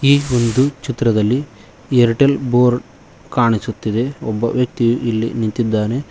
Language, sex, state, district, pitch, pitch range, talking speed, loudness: Kannada, male, Karnataka, Koppal, 120 Hz, 115-130 Hz, 100 wpm, -17 LUFS